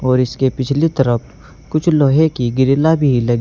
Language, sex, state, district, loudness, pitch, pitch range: Hindi, male, Uttar Pradesh, Saharanpur, -15 LUFS, 135 Hz, 125-155 Hz